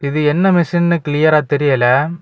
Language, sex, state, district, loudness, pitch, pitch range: Tamil, male, Tamil Nadu, Kanyakumari, -14 LUFS, 155 Hz, 145-170 Hz